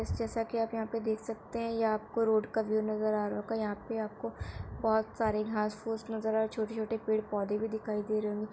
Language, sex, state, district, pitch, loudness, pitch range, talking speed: Hindi, female, Uttar Pradesh, Etah, 220 Hz, -33 LUFS, 215-225 Hz, 255 wpm